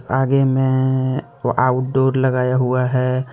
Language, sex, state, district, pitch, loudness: Hindi, male, Jharkhand, Deoghar, 130 Hz, -18 LUFS